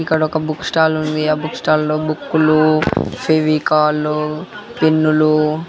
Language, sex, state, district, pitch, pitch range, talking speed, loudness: Telugu, male, Andhra Pradesh, Guntur, 155 Hz, 155-160 Hz, 125 wpm, -16 LUFS